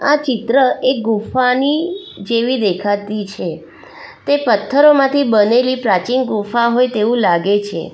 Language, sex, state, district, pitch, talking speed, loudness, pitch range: Gujarati, female, Gujarat, Valsad, 245 Hz, 120 wpm, -15 LUFS, 215-275 Hz